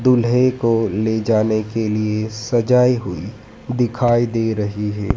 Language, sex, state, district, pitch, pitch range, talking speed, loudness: Hindi, male, Madhya Pradesh, Dhar, 110 Hz, 105-120 Hz, 140 wpm, -18 LUFS